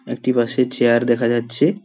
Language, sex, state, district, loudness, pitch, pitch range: Bengali, male, West Bengal, Paschim Medinipur, -18 LUFS, 120 Hz, 120-130 Hz